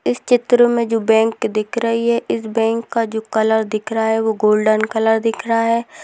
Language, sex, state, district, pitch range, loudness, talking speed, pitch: Hindi, female, Bihar, Begusarai, 220-230 Hz, -17 LUFS, 220 wpm, 225 Hz